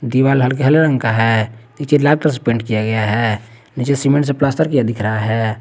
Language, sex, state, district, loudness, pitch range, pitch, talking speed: Hindi, male, Jharkhand, Garhwa, -16 LUFS, 110-140 Hz, 120 Hz, 215 wpm